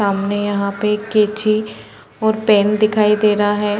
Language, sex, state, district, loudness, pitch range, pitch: Hindi, female, Chhattisgarh, Bilaspur, -16 LUFS, 205-215 Hz, 210 Hz